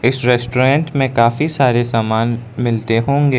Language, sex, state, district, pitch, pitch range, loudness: Hindi, male, Arunachal Pradesh, Lower Dibang Valley, 125 Hz, 115-135 Hz, -15 LUFS